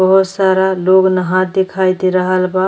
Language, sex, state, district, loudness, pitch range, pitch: Bhojpuri, female, Uttar Pradesh, Deoria, -13 LUFS, 185-190 Hz, 185 Hz